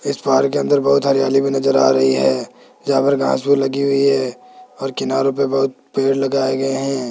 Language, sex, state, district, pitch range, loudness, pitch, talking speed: Hindi, male, Rajasthan, Jaipur, 135-140 Hz, -17 LUFS, 135 Hz, 230 wpm